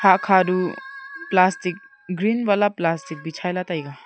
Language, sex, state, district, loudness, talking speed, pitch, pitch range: Wancho, female, Arunachal Pradesh, Longding, -21 LUFS, 145 wpm, 185 Hz, 180-210 Hz